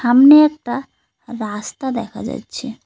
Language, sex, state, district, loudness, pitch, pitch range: Bengali, female, West Bengal, Cooch Behar, -16 LUFS, 245 Hz, 235-275 Hz